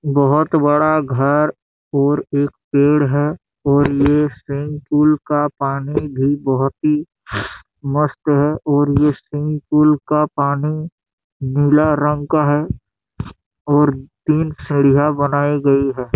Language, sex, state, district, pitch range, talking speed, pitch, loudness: Hindi, male, Chhattisgarh, Bastar, 140-150 Hz, 130 wpm, 145 Hz, -17 LUFS